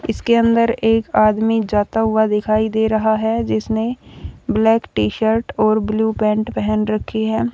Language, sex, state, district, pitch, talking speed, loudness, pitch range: Hindi, female, Haryana, Rohtak, 220 Hz, 160 wpm, -17 LUFS, 215-225 Hz